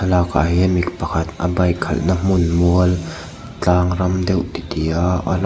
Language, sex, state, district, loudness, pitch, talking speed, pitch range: Mizo, male, Mizoram, Aizawl, -18 LUFS, 90 Hz, 185 wpm, 85-90 Hz